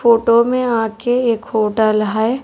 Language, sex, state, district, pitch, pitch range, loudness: Hindi, female, Telangana, Hyderabad, 230 Hz, 220-240 Hz, -16 LUFS